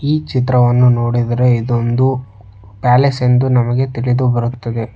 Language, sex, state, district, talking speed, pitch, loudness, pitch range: Kannada, male, Karnataka, Bangalore, 95 wpm, 125 Hz, -14 LUFS, 120-125 Hz